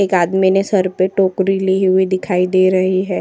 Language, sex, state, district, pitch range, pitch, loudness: Hindi, female, Uttar Pradesh, Jyotiba Phule Nagar, 185-190 Hz, 190 Hz, -15 LUFS